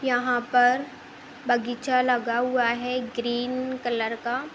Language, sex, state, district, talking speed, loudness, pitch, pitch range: Hindi, female, Uttar Pradesh, Budaun, 120 wpm, -25 LUFS, 245 Hz, 240-255 Hz